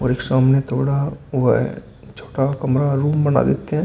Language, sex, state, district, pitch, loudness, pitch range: Hindi, male, Uttar Pradesh, Shamli, 135 Hz, -19 LUFS, 130-145 Hz